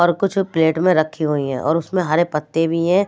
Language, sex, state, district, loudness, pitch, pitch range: Hindi, female, Maharashtra, Mumbai Suburban, -18 LUFS, 165 Hz, 155-180 Hz